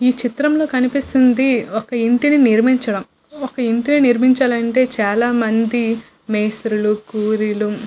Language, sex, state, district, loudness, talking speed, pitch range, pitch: Telugu, female, Andhra Pradesh, Visakhapatnam, -16 LUFS, 105 wpm, 220-255 Hz, 240 Hz